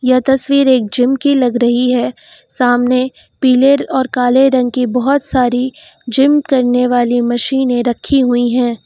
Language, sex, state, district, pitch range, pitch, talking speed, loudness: Hindi, female, Uttar Pradesh, Lucknow, 245-265 Hz, 255 Hz, 155 wpm, -13 LUFS